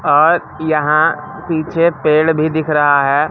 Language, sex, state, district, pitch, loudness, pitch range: Hindi, male, Madhya Pradesh, Katni, 155 Hz, -14 LUFS, 150-160 Hz